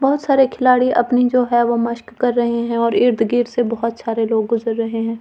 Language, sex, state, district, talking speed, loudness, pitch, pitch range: Hindi, female, Delhi, New Delhi, 230 wpm, -17 LUFS, 235 Hz, 230-245 Hz